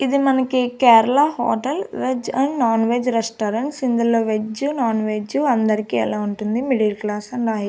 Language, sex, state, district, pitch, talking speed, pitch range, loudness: Telugu, female, Andhra Pradesh, Annamaya, 235 Hz, 150 wpm, 215-260 Hz, -19 LUFS